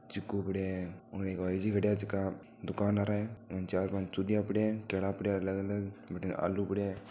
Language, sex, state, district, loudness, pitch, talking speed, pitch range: Marwari, male, Rajasthan, Nagaur, -34 LUFS, 100 Hz, 210 wpm, 95-105 Hz